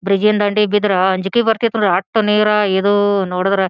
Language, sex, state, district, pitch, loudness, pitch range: Kannada, female, Karnataka, Gulbarga, 205 Hz, -15 LUFS, 195-210 Hz